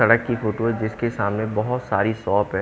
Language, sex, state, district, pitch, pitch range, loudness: Hindi, male, Haryana, Jhajjar, 110 Hz, 105-115 Hz, -22 LUFS